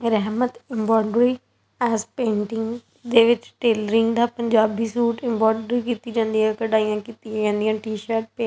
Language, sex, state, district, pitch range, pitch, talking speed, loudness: Punjabi, female, Punjab, Kapurthala, 220-235 Hz, 225 Hz, 150 wpm, -22 LUFS